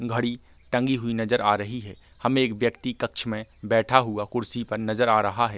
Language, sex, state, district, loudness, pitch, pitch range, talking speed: Hindi, male, Chhattisgarh, Bilaspur, -25 LUFS, 115 Hz, 110-125 Hz, 215 wpm